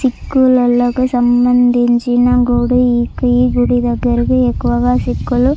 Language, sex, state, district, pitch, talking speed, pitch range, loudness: Telugu, female, Andhra Pradesh, Chittoor, 245 Hz, 95 wpm, 240-250 Hz, -13 LUFS